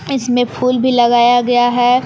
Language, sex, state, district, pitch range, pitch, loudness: Hindi, female, Jharkhand, Palamu, 245-250 Hz, 245 Hz, -13 LUFS